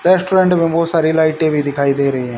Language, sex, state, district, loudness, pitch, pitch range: Hindi, male, Haryana, Charkhi Dadri, -14 LUFS, 160 Hz, 140-170 Hz